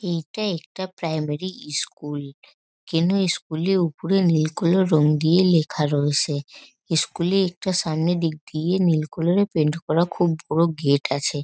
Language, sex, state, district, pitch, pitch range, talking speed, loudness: Bengali, female, West Bengal, North 24 Parganas, 165 Hz, 155-185 Hz, 165 wpm, -22 LUFS